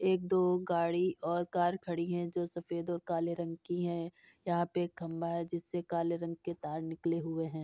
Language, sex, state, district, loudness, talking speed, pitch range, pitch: Hindi, female, Uttar Pradesh, Etah, -35 LUFS, 210 wpm, 170-175 Hz, 170 Hz